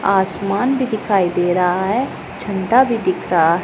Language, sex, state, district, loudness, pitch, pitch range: Hindi, female, Punjab, Pathankot, -17 LUFS, 195 Hz, 180-225 Hz